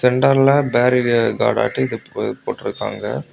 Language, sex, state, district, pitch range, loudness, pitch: Tamil, male, Tamil Nadu, Kanyakumari, 120-135 Hz, -18 LUFS, 125 Hz